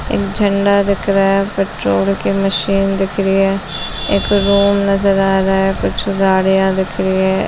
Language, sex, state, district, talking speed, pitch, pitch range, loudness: Hindi, female, Chhattisgarh, Balrampur, 185 wpm, 195 Hz, 190-200 Hz, -14 LUFS